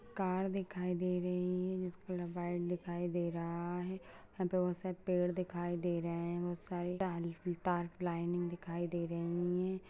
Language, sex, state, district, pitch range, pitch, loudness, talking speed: Hindi, female, Uttarakhand, Uttarkashi, 175-180 Hz, 175 Hz, -38 LUFS, 165 wpm